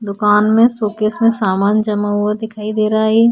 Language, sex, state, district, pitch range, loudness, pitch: Hindi, female, Bihar, Vaishali, 210-220 Hz, -15 LUFS, 215 Hz